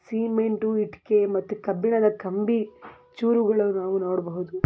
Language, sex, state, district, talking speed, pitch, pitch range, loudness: Kannada, female, Karnataka, Belgaum, 105 wpm, 210 Hz, 190-220 Hz, -24 LUFS